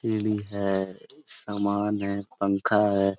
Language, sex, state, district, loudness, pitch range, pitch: Hindi, male, Jharkhand, Sahebganj, -27 LUFS, 100-105 Hz, 100 Hz